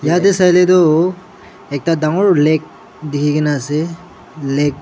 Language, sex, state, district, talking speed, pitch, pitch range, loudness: Nagamese, male, Nagaland, Dimapur, 125 wpm, 155 Hz, 145-180 Hz, -14 LUFS